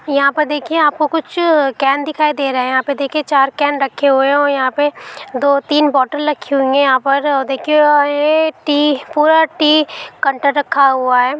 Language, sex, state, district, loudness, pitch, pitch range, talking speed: Hindi, female, Chhattisgarh, Balrampur, -14 LUFS, 285 Hz, 275-300 Hz, 205 wpm